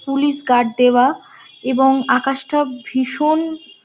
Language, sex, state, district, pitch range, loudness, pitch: Bengali, female, West Bengal, Dakshin Dinajpur, 255-295 Hz, -17 LUFS, 270 Hz